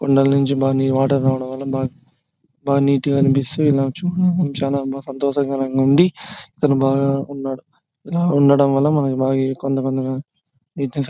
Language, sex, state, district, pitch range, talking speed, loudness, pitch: Telugu, male, Andhra Pradesh, Anantapur, 135-140 Hz, 110 wpm, -18 LUFS, 140 Hz